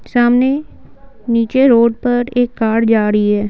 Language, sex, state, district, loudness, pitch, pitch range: Hindi, female, Bihar, Patna, -14 LUFS, 235 Hz, 225-245 Hz